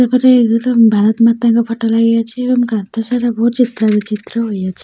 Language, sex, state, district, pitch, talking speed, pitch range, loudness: Odia, female, Odisha, Khordha, 230 Hz, 160 wpm, 220-245 Hz, -13 LUFS